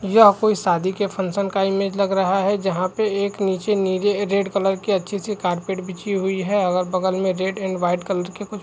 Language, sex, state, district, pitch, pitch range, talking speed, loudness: Hindi, female, Chhattisgarh, Rajnandgaon, 195 Hz, 185-200 Hz, 235 wpm, -21 LUFS